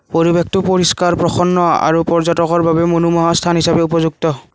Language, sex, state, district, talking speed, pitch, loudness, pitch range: Assamese, male, Assam, Kamrup Metropolitan, 130 wpm, 170 Hz, -14 LUFS, 165-175 Hz